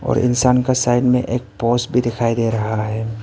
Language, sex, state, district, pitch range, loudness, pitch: Hindi, male, Arunachal Pradesh, Papum Pare, 110-125 Hz, -18 LUFS, 120 Hz